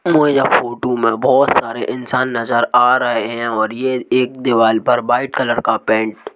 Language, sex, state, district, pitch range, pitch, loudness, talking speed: Hindi, male, Madhya Pradesh, Bhopal, 115-130 Hz, 120 Hz, -15 LUFS, 200 wpm